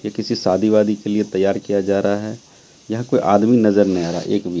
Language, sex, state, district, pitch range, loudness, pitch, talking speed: Hindi, male, Bihar, Katihar, 95-110 Hz, -18 LUFS, 105 Hz, 260 wpm